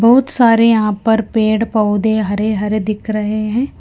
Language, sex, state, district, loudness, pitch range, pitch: Hindi, female, Himachal Pradesh, Shimla, -15 LUFS, 215-230 Hz, 215 Hz